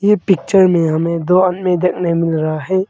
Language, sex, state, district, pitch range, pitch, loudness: Hindi, male, Arunachal Pradesh, Longding, 165-190 Hz, 180 Hz, -15 LUFS